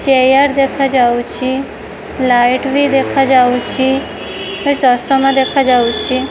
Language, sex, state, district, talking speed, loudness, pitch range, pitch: Odia, female, Odisha, Khordha, 65 wpm, -13 LUFS, 250-275 Hz, 265 Hz